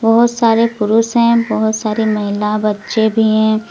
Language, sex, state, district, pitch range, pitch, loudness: Hindi, female, Uttar Pradesh, Lucknow, 215-230 Hz, 220 Hz, -14 LUFS